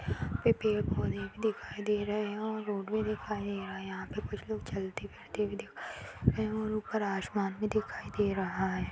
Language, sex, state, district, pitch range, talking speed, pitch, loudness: Kumaoni, female, Uttarakhand, Tehri Garhwal, 195-215 Hz, 235 wpm, 210 Hz, -34 LUFS